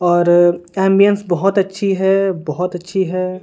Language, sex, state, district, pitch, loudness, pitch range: Hindi, female, Bihar, Patna, 185 Hz, -15 LUFS, 175-195 Hz